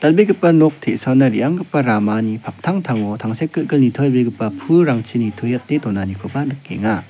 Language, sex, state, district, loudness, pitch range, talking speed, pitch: Garo, male, Meghalaya, South Garo Hills, -17 LUFS, 110-155 Hz, 100 wpm, 130 Hz